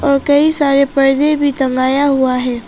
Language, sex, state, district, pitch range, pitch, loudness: Hindi, female, Arunachal Pradesh, Papum Pare, 260-285 Hz, 275 Hz, -13 LUFS